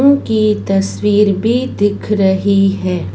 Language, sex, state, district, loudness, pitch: Hindi, male, Madhya Pradesh, Dhar, -14 LUFS, 200 Hz